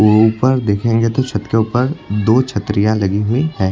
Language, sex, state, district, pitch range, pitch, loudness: Hindi, male, Uttar Pradesh, Lucknow, 105-125 Hz, 110 Hz, -15 LUFS